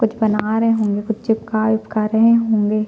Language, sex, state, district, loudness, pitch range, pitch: Hindi, female, Chhattisgarh, Sukma, -17 LUFS, 215-225 Hz, 220 Hz